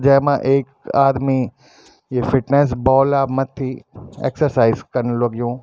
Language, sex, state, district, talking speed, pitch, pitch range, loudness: Garhwali, male, Uttarakhand, Tehri Garhwal, 115 wpm, 135 Hz, 125-140 Hz, -18 LUFS